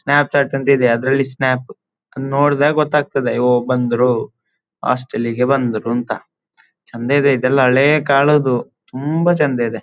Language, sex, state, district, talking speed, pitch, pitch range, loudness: Kannada, male, Karnataka, Dakshina Kannada, 130 wpm, 135 Hz, 125-140 Hz, -16 LUFS